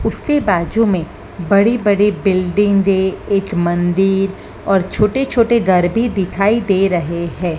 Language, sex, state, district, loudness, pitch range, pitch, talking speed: Hindi, female, Maharashtra, Mumbai Suburban, -15 LUFS, 180-210 Hz, 195 Hz, 135 wpm